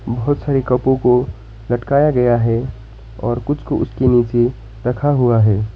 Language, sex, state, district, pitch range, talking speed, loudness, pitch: Hindi, male, West Bengal, Alipurduar, 115-130 Hz, 155 wpm, -16 LUFS, 120 Hz